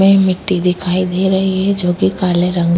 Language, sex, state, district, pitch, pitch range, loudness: Hindi, female, Uttar Pradesh, Budaun, 185 Hz, 180-190 Hz, -15 LUFS